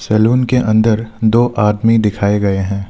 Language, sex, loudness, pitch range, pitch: Hindi, male, -14 LUFS, 105-115 Hz, 110 Hz